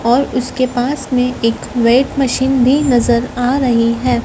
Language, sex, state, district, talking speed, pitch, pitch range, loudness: Hindi, female, Madhya Pradesh, Dhar, 170 wpm, 250 Hz, 240-260 Hz, -14 LUFS